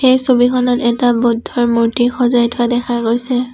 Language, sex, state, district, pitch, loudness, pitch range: Assamese, female, Assam, Sonitpur, 240 Hz, -14 LUFS, 235-245 Hz